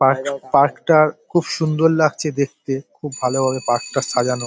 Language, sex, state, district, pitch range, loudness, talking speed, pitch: Bengali, male, West Bengal, Paschim Medinipur, 130-155 Hz, -19 LUFS, 160 wpm, 140 Hz